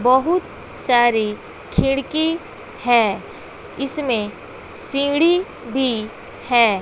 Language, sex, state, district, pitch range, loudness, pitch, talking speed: Hindi, female, Bihar, West Champaran, 230-295 Hz, -19 LUFS, 255 Hz, 70 wpm